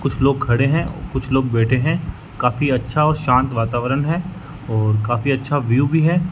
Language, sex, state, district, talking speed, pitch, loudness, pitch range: Hindi, male, Rajasthan, Bikaner, 190 wpm, 135 Hz, -18 LUFS, 125-150 Hz